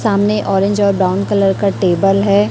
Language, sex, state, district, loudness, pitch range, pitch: Hindi, female, Chhattisgarh, Raipur, -14 LUFS, 195-205 Hz, 200 Hz